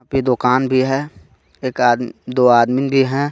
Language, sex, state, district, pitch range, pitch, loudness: Hindi, male, Jharkhand, Garhwa, 125-135 Hz, 130 Hz, -16 LUFS